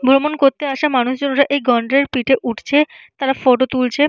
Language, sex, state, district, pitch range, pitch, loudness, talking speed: Bengali, female, West Bengal, Jalpaiguri, 255-280 Hz, 270 Hz, -16 LUFS, 175 wpm